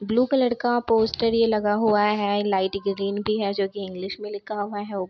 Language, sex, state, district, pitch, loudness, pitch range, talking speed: Hindi, female, Bihar, Begusarai, 205 Hz, -23 LUFS, 200-220 Hz, 245 wpm